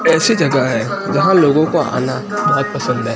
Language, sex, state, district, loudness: Hindi, male, Gujarat, Gandhinagar, -15 LUFS